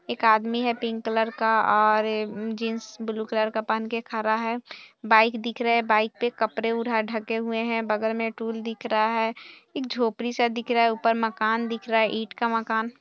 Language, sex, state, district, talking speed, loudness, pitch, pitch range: Hindi, female, Bihar, Saharsa, 210 wpm, -25 LUFS, 225 Hz, 220-230 Hz